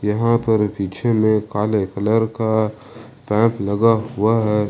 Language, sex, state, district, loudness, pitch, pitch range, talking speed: Hindi, male, Jharkhand, Ranchi, -19 LUFS, 110 Hz, 105-115 Hz, 140 wpm